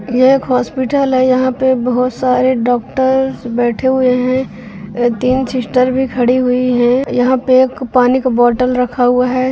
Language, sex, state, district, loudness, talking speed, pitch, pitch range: Hindi, female, Bihar, Begusarai, -13 LUFS, 170 wpm, 255 Hz, 245-260 Hz